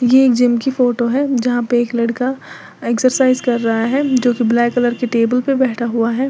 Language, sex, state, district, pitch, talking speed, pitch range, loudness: Hindi, female, Uttar Pradesh, Lalitpur, 245 Hz, 230 wpm, 235-255 Hz, -16 LUFS